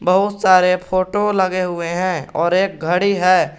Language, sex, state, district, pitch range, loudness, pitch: Hindi, male, Jharkhand, Garhwa, 180-190 Hz, -17 LUFS, 185 Hz